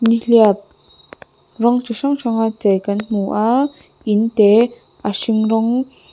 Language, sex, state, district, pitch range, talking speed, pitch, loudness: Mizo, female, Mizoram, Aizawl, 210-235 Hz, 145 wpm, 225 Hz, -16 LUFS